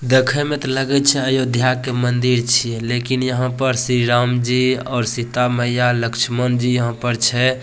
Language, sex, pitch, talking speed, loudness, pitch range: Bhojpuri, male, 125 Hz, 180 wpm, -17 LUFS, 120-130 Hz